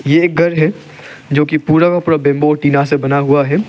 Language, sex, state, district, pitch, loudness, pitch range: Hindi, male, Arunachal Pradesh, Lower Dibang Valley, 150 Hz, -13 LUFS, 145-165 Hz